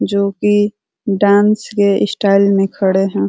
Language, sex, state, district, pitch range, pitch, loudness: Hindi, female, Uttar Pradesh, Ghazipur, 195-205 Hz, 200 Hz, -14 LUFS